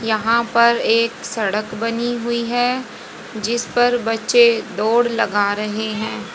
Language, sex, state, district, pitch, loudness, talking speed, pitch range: Hindi, female, Haryana, Jhajjar, 230 Hz, -18 LUFS, 130 wpm, 220-235 Hz